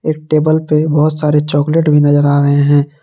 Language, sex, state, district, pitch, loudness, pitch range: Hindi, male, Jharkhand, Palamu, 150 Hz, -12 LUFS, 145-155 Hz